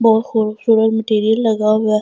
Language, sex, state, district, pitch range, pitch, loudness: Hindi, female, Delhi, New Delhi, 215-225 Hz, 220 Hz, -15 LUFS